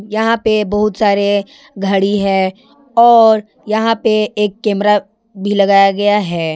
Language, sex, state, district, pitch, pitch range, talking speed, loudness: Hindi, female, Jharkhand, Ranchi, 210 Hz, 200-220 Hz, 135 wpm, -13 LUFS